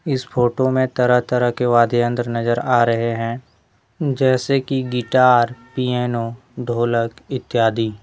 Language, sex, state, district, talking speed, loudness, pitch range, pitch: Hindi, male, Jharkhand, Deoghar, 135 wpm, -19 LUFS, 115-130 Hz, 120 Hz